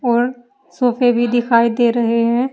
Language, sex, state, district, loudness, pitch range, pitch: Hindi, female, Uttar Pradesh, Saharanpur, -16 LUFS, 235-245 Hz, 240 Hz